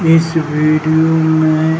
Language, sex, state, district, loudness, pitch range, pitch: Hindi, male, Bihar, Jahanabad, -13 LUFS, 155-160 Hz, 160 Hz